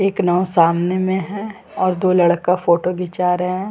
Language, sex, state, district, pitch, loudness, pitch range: Hindi, female, Uttar Pradesh, Jyotiba Phule Nagar, 180 Hz, -17 LUFS, 175-190 Hz